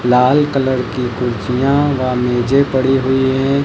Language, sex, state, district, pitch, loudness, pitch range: Hindi, male, Uttar Pradesh, Lucknow, 130 Hz, -15 LUFS, 125-135 Hz